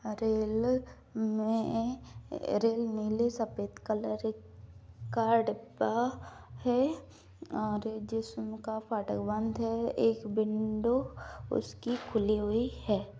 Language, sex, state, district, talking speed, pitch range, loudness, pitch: Hindi, female, Bihar, Purnia, 100 wpm, 215-230 Hz, -32 LUFS, 220 Hz